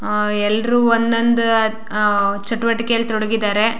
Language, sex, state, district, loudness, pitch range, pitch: Kannada, female, Karnataka, Shimoga, -17 LUFS, 210-230 Hz, 225 Hz